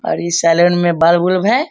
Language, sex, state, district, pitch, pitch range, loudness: Hindi, male, Bihar, Sitamarhi, 175 Hz, 170-185 Hz, -13 LUFS